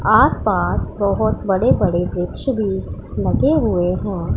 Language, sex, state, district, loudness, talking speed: Hindi, female, Punjab, Pathankot, -18 LUFS, 125 wpm